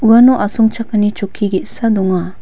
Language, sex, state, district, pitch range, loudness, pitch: Garo, female, Meghalaya, West Garo Hills, 200-225 Hz, -14 LUFS, 210 Hz